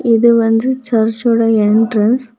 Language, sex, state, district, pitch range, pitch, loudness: Tamil, female, Tamil Nadu, Kanyakumari, 225-235 Hz, 230 Hz, -13 LUFS